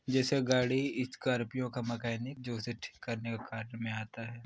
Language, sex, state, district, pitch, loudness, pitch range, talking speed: Hindi, male, Chhattisgarh, Balrampur, 120 Hz, -35 LUFS, 115-130 Hz, 190 wpm